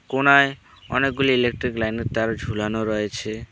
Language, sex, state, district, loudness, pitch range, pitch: Bengali, male, West Bengal, Alipurduar, -21 LUFS, 110-130 Hz, 115 Hz